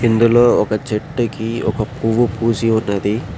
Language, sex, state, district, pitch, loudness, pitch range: Telugu, male, Telangana, Hyderabad, 115 Hz, -17 LUFS, 110-120 Hz